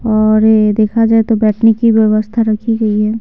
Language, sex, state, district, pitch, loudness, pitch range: Hindi, female, Bihar, Patna, 220 Hz, -11 LUFS, 215-225 Hz